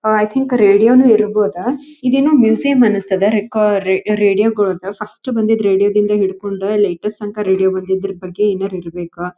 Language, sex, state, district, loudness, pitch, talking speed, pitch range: Kannada, female, Karnataka, Dharwad, -15 LUFS, 210 Hz, 160 wpm, 195-220 Hz